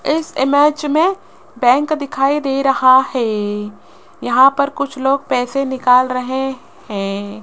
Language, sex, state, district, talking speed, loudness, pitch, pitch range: Hindi, female, Rajasthan, Jaipur, 130 wpm, -16 LUFS, 270 Hz, 250-280 Hz